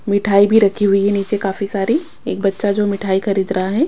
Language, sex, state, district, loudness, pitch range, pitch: Hindi, female, Punjab, Kapurthala, -16 LUFS, 195-205 Hz, 200 Hz